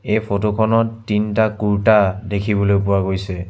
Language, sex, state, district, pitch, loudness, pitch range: Assamese, male, Assam, Sonitpur, 105 Hz, -18 LUFS, 100-110 Hz